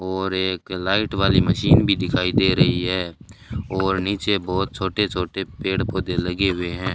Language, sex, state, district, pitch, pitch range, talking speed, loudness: Hindi, male, Rajasthan, Bikaner, 95 Hz, 90-100 Hz, 170 wpm, -21 LUFS